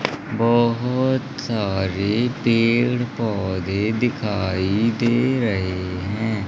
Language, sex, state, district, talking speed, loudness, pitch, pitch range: Hindi, male, Madhya Pradesh, Umaria, 75 wpm, -21 LUFS, 115 Hz, 100-120 Hz